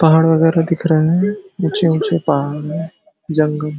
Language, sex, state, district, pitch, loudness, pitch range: Hindi, male, Uttar Pradesh, Ghazipur, 160 Hz, -16 LUFS, 155-170 Hz